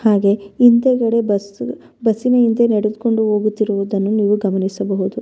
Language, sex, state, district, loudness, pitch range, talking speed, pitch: Kannada, female, Karnataka, Bellary, -16 LUFS, 200-230 Hz, 105 wpm, 215 Hz